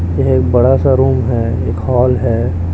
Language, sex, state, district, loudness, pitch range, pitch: Hindi, male, Chhattisgarh, Raipur, -13 LUFS, 90-125 Hz, 115 Hz